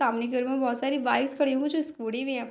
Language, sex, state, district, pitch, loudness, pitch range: Hindi, female, Bihar, Darbhanga, 265 Hz, -27 LUFS, 245-280 Hz